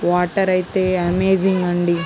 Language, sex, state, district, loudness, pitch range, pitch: Telugu, female, Andhra Pradesh, Guntur, -18 LUFS, 175-190 Hz, 185 Hz